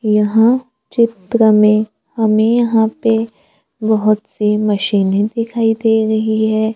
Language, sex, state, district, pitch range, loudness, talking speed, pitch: Hindi, female, Maharashtra, Gondia, 210-225 Hz, -14 LUFS, 115 wpm, 220 Hz